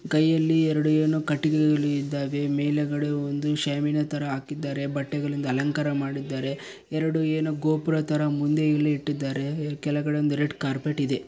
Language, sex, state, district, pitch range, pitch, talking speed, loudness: Kannada, male, Karnataka, Bellary, 145-155 Hz, 150 Hz, 130 wpm, -25 LUFS